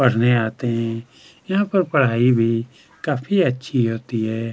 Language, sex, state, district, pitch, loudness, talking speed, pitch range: Hindi, male, Chhattisgarh, Kabirdham, 120 Hz, -20 LUFS, 145 wpm, 115-135 Hz